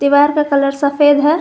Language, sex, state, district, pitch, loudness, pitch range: Hindi, female, Jharkhand, Garhwa, 290 Hz, -13 LUFS, 280-295 Hz